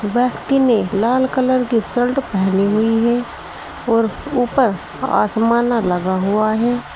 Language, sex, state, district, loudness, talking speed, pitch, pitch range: Hindi, female, Uttar Pradesh, Saharanpur, -17 LUFS, 140 wpm, 235 Hz, 210-245 Hz